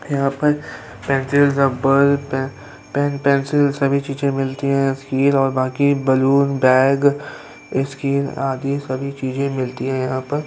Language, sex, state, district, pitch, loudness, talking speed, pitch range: Hindi, male, Uttar Pradesh, Hamirpur, 140 Hz, -18 LUFS, 130 wpm, 135-140 Hz